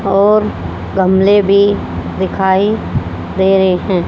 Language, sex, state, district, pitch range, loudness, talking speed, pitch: Hindi, female, Haryana, Jhajjar, 190-205 Hz, -13 LUFS, 105 wpm, 195 Hz